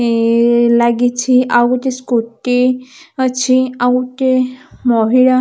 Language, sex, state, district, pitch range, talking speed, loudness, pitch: Odia, female, Odisha, Khordha, 235-255 Hz, 110 wpm, -14 LUFS, 250 Hz